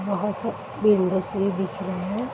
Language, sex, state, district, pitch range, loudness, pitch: Hindi, female, Bihar, Araria, 190-210 Hz, -25 LUFS, 200 Hz